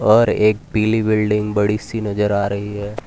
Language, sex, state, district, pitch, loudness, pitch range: Hindi, male, Gujarat, Valsad, 105 Hz, -18 LUFS, 105-110 Hz